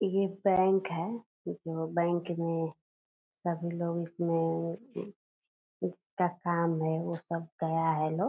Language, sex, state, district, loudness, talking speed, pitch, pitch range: Hindi, female, Bihar, Purnia, -32 LUFS, 130 wpm, 170 Hz, 165-185 Hz